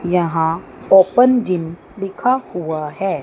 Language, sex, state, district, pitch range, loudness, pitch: Hindi, female, Chandigarh, Chandigarh, 165-200 Hz, -17 LUFS, 185 Hz